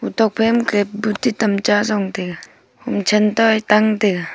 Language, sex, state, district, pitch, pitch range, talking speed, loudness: Wancho, female, Arunachal Pradesh, Longding, 210 Hz, 205-220 Hz, 140 wpm, -17 LUFS